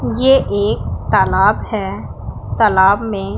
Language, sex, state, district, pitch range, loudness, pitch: Hindi, female, Punjab, Pathankot, 200-230 Hz, -15 LUFS, 210 Hz